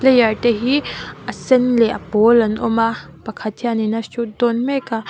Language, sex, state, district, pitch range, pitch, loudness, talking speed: Mizo, female, Mizoram, Aizawl, 220-245 Hz, 230 Hz, -17 LUFS, 210 wpm